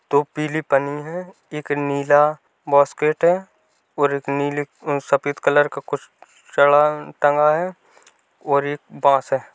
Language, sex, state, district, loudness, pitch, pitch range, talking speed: Hindi, male, Bihar, Bhagalpur, -20 LUFS, 145 Hz, 140-150 Hz, 130 wpm